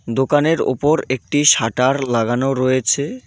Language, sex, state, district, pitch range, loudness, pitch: Bengali, male, West Bengal, Cooch Behar, 125-145 Hz, -17 LUFS, 130 Hz